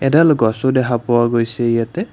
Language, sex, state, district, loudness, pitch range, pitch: Assamese, male, Assam, Kamrup Metropolitan, -16 LUFS, 115-130 Hz, 120 Hz